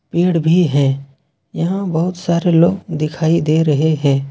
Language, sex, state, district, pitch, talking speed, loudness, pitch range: Hindi, male, Jharkhand, Ranchi, 160 Hz, 155 wpm, -16 LUFS, 145-170 Hz